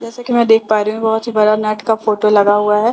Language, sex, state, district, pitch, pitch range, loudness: Hindi, female, Bihar, Katihar, 215 Hz, 210-225 Hz, -14 LUFS